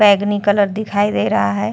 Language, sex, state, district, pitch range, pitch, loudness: Hindi, female, Uttar Pradesh, Hamirpur, 195-205 Hz, 205 Hz, -16 LUFS